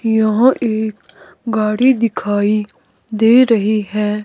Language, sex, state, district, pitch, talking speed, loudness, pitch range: Hindi, female, Himachal Pradesh, Shimla, 220 Hz, 100 wpm, -15 LUFS, 210-230 Hz